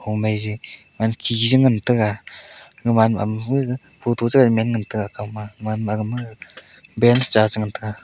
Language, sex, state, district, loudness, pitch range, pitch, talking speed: Wancho, male, Arunachal Pradesh, Longding, -19 LUFS, 105-120 Hz, 110 Hz, 165 wpm